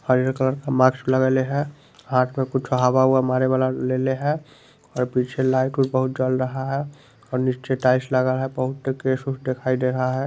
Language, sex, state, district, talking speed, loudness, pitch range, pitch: Hindi, male, Bihar, Muzaffarpur, 200 wpm, -22 LUFS, 130-135 Hz, 130 Hz